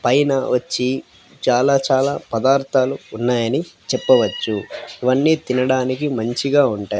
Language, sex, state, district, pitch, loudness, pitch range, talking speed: Telugu, female, Andhra Pradesh, Sri Satya Sai, 130 Hz, -18 LUFS, 125-140 Hz, 120 wpm